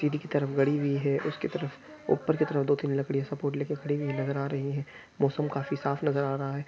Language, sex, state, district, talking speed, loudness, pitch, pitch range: Hindi, male, Chhattisgarh, Raigarh, 260 wpm, -30 LUFS, 140 Hz, 140-145 Hz